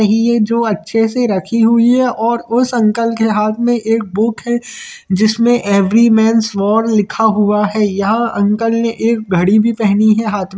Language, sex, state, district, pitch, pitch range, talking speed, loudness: Hindi, male, Chhattisgarh, Bilaspur, 225 Hz, 210-230 Hz, 200 wpm, -13 LUFS